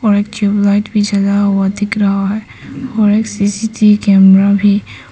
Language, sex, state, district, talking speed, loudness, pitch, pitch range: Hindi, female, Arunachal Pradesh, Papum Pare, 165 wpm, -12 LUFS, 205 Hz, 200-210 Hz